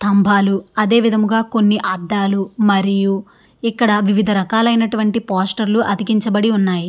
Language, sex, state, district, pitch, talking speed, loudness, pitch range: Telugu, female, Andhra Pradesh, Srikakulam, 210 Hz, 115 wpm, -16 LUFS, 195-225 Hz